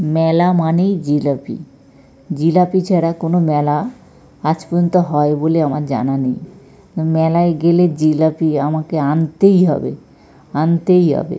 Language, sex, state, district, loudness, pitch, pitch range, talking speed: Bengali, male, West Bengal, North 24 Parganas, -15 LUFS, 160 Hz, 150-175 Hz, 115 wpm